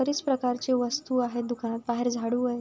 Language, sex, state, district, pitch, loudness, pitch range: Marathi, female, Maharashtra, Sindhudurg, 245 Hz, -28 LUFS, 240-255 Hz